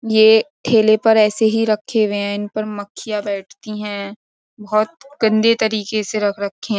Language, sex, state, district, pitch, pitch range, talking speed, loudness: Hindi, female, Uttar Pradesh, Jyotiba Phule Nagar, 215 Hz, 205-220 Hz, 175 wpm, -17 LUFS